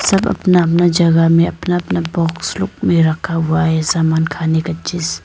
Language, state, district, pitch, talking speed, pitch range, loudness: Hindi, Arunachal Pradesh, Lower Dibang Valley, 165 Hz, 205 wpm, 160-175 Hz, -15 LUFS